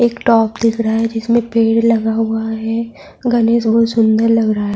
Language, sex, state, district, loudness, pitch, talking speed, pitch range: Urdu, female, Bihar, Saharsa, -15 LUFS, 225 Hz, 215 wpm, 225-230 Hz